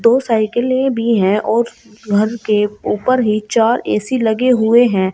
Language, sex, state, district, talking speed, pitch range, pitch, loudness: Hindi, female, Uttar Pradesh, Shamli, 165 wpm, 215-240 Hz, 225 Hz, -15 LUFS